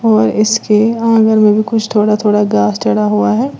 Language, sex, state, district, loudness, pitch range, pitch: Hindi, female, Uttar Pradesh, Lalitpur, -12 LUFS, 140-220 Hz, 210 Hz